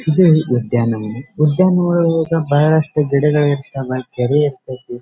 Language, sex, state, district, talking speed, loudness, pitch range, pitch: Kannada, male, Karnataka, Dharwad, 95 wpm, -16 LUFS, 130-160 Hz, 145 Hz